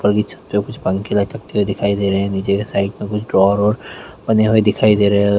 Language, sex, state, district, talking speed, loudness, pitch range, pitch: Hindi, male, Bihar, Araria, 265 wpm, -17 LUFS, 100-105 Hz, 100 Hz